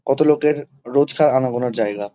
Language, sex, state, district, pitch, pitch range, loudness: Bengali, male, West Bengal, Kolkata, 135 Hz, 120-150 Hz, -18 LUFS